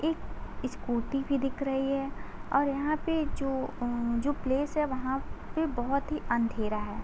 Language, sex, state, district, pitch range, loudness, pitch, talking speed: Hindi, female, Uttar Pradesh, Gorakhpur, 245-285 Hz, -31 LUFS, 275 Hz, 170 wpm